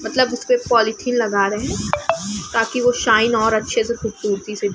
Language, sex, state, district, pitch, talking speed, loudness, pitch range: Hindi, female, Bihar, Lakhisarai, 225 Hz, 190 wpm, -19 LUFS, 210-245 Hz